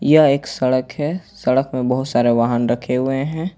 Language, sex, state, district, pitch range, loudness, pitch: Hindi, male, Jharkhand, Ranchi, 125-145 Hz, -18 LUFS, 130 Hz